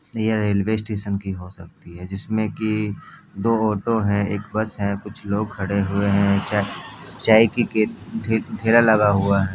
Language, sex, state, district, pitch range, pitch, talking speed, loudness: Hindi, male, Bihar, Jamui, 100-110 Hz, 105 Hz, 165 wpm, -21 LUFS